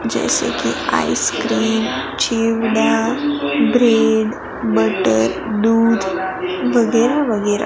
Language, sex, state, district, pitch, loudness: Hindi, female, Gujarat, Gandhinagar, 215 Hz, -17 LUFS